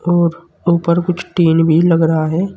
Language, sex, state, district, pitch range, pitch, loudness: Hindi, male, Uttar Pradesh, Saharanpur, 165-175 Hz, 170 Hz, -14 LUFS